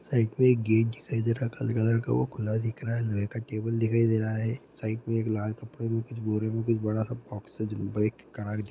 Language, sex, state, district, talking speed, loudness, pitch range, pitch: Maithili, male, Bihar, Araria, 275 wpm, -29 LUFS, 110-115 Hz, 115 Hz